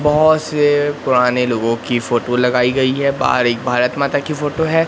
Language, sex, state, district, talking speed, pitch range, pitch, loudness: Hindi, male, Madhya Pradesh, Katni, 195 wpm, 125-145 Hz, 130 Hz, -16 LUFS